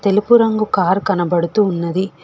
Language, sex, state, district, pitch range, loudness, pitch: Telugu, female, Telangana, Hyderabad, 175-215 Hz, -16 LUFS, 195 Hz